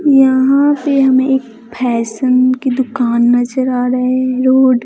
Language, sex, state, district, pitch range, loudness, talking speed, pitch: Hindi, male, Bihar, West Champaran, 245-265 Hz, -13 LUFS, 150 wpm, 255 Hz